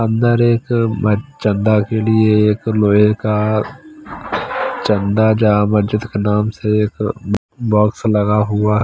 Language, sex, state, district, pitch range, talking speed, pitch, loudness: Hindi, male, Chandigarh, Chandigarh, 105-110 Hz, 120 wpm, 105 Hz, -16 LUFS